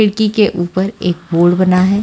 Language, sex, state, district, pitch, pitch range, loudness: Hindi, female, Haryana, Charkhi Dadri, 185 Hz, 175-210 Hz, -14 LUFS